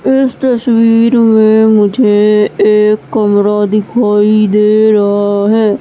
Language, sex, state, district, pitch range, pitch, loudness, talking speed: Hindi, female, Madhya Pradesh, Katni, 210-225 Hz, 215 Hz, -9 LUFS, 105 wpm